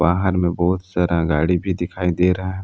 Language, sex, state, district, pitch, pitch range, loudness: Hindi, male, Jharkhand, Palamu, 90 Hz, 85-95 Hz, -20 LUFS